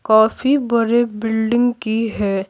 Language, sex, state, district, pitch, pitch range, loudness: Hindi, female, Bihar, Patna, 225 Hz, 220-240 Hz, -17 LUFS